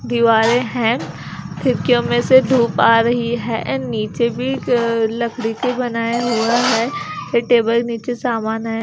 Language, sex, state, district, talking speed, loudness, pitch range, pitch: Hindi, female, Himachal Pradesh, Shimla, 150 wpm, -17 LUFS, 230-245 Hz, 235 Hz